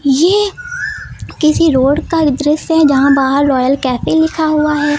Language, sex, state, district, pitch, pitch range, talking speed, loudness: Hindi, female, Uttar Pradesh, Lucknow, 300 Hz, 275-320 Hz, 155 wpm, -13 LUFS